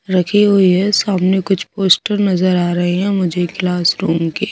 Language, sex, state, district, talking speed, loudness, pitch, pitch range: Hindi, female, Bihar, Kaimur, 185 wpm, -15 LUFS, 185 Hz, 175-200 Hz